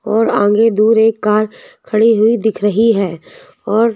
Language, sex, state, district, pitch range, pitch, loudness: Hindi, female, Madhya Pradesh, Bhopal, 210-225 Hz, 220 Hz, -13 LUFS